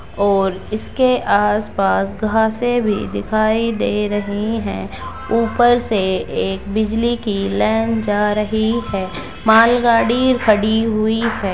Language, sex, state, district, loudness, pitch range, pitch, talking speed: Hindi, female, Bihar, Begusarai, -17 LUFS, 200-230 Hz, 215 Hz, 125 wpm